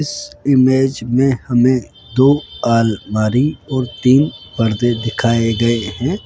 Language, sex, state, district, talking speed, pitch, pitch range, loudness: Hindi, male, Rajasthan, Jaipur, 115 wpm, 120 Hz, 115-135 Hz, -16 LUFS